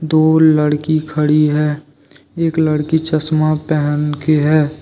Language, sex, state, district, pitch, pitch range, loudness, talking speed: Hindi, male, Jharkhand, Deoghar, 155 Hz, 150-155 Hz, -15 LUFS, 125 wpm